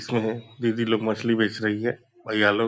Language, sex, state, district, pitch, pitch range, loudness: Hindi, male, Bihar, Purnia, 115 Hz, 110-115 Hz, -25 LUFS